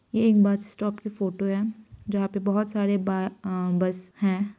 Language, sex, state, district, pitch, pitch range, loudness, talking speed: Hindi, female, Bihar, Saran, 200 Hz, 195-210 Hz, -26 LUFS, 195 wpm